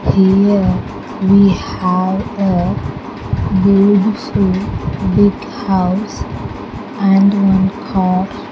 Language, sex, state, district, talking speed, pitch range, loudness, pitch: English, female, Andhra Pradesh, Sri Satya Sai, 70 wpm, 190-200 Hz, -14 LUFS, 195 Hz